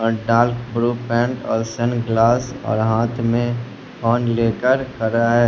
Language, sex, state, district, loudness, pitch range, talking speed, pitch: Hindi, male, Bihar, West Champaran, -19 LUFS, 115-120 Hz, 110 wpm, 115 Hz